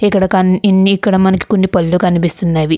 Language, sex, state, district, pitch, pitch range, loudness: Telugu, female, Andhra Pradesh, Krishna, 190 Hz, 180-195 Hz, -12 LUFS